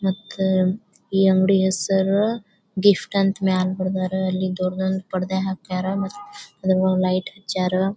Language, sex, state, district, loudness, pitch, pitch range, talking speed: Kannada, female, Karnataka, Bijapur, -21 LUFS, 190 Hz, 185-195 Hz, 120 wpm